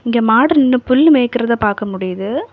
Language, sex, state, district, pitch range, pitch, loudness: Tamil, female, Tamil Nadu, Kanyakumari, 210-270 Hz, 240 Hz, -14 LUFS